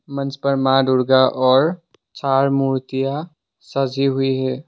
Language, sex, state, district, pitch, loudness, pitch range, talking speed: Hindi, male, Assam, Sonitpur, 135 Hz, -18 LUFS, 130-140 Hz, 130 wpm